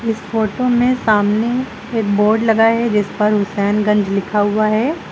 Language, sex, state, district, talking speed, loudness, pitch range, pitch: Hindi, female, Uttar Pradesh, Lucknow, 165 wpm, -16 LUFS, 210-230 Hz, 215 Hz